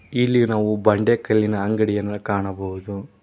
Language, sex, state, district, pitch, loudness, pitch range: Kannada, male, Karnataka, Koppal, 105 Hz, -21 LUFS, 100-110 Hz